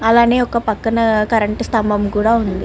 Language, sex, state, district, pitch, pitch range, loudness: Telugu, male, Andhra Pradesh, Guntur, 225 Hz, 210-235 Hz, -16 LUFS